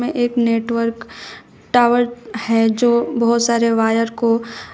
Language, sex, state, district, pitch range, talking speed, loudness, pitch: Hindi, female, Uttar Pradesh, Shamli, 230-240 Hz, 140 wpm, -17 LUFS, 235 Hz